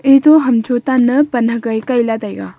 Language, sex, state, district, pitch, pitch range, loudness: Wancho, female, Arunachal Pradesh, Longding, 245 Hz, 225-270 Hz, -13 LUFS